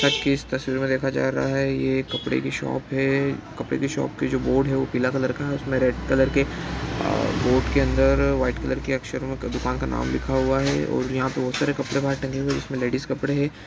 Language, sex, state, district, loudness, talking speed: Hindi, male, Bihar, East Champaran, -24 LUFS, 255 wpm